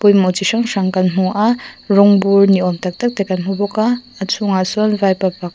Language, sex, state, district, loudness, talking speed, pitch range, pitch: Mizo, female, Mizoram, Aizawl, -15 LUFS, 225 wpm, 185-210 Hz, 200 Hz